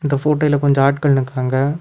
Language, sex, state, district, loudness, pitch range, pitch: Tamil, male, Tamil Nadu, Kanyakumari, -16 LUFS, 135-150 Hz, 140 Hz